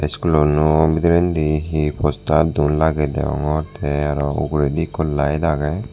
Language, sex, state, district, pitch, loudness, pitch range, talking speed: Chakma, male, Tripura, Dhalai, 75 Hz, -18 LUFS, 75-80 Hz, 130 wpm